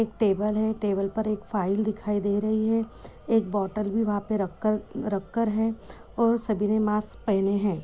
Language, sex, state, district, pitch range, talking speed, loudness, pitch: Hindi, female, Maharashtra, Nagpur, 205-220 Hz, 185 wpm, -26 LUFS, 210 Hz